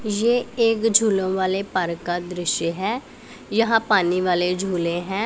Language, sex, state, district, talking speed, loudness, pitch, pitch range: Hindi, female, Punjab, Pathankot, 150 wpm, -21 LUFS, 190 Hz, 180-225 Hz